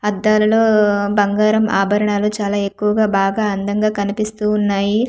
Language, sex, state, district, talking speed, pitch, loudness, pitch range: Telugu, female, Andhra Pradesh, Manyam, 105 wpm, 210 Hz, -16 LUFS, 200-215 Hz